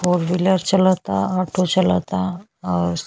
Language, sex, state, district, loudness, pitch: Bhojpuri, female, Uttar Pradesh, Ghazipur, -19 LUFS, 180 Hz